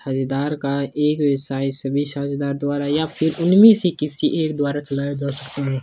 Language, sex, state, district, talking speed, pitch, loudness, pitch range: Hindi, male, Rajasthan, Churu, 185 wpm, 140 Hz, -20 LUFS, 140-150 Hz